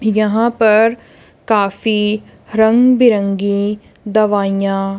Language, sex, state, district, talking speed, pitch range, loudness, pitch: Hindi, female, Punjab, Kapurthala, 70 wpm, 200-220 Hz, -14 LUFS, 215 Hz